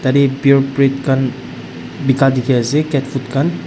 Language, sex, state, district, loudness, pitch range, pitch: Nagamese, male, Nagaland, Dimapur, -15 LUFS, 130-140 Hz, 135 Hz